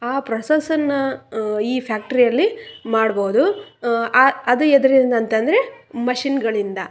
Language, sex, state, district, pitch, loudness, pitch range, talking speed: Kannada, female, Karnataka, Raichur, 250 Hz, -18 LUFS, 225-285 Hz, 120 wpm